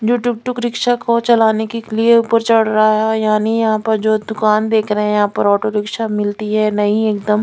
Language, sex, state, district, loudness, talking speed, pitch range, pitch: Hindi, female, Chandigarh, Chandigarh, -15 LUFS, 225 wpm, 215-230 Hz, 220 Hz